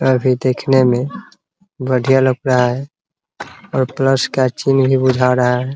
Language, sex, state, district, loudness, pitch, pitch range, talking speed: Hindi, male, Bihar, Muzaffarpur, -15 LUFS, 130 Hz, 125-135 Hz, 175 wpm